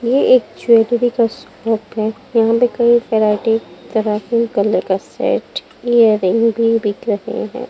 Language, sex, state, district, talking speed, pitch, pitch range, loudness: Hindi, female, Punjab, Pathankot, 140 wpm, 230 Hz, 215-240 Hz, -16 LUFS